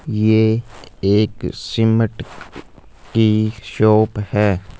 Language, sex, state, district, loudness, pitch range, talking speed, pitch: Hindi, male, Punjab, Fazilka, -17 LUFS, 105-110 Hz, 75 wpm, 110 Hz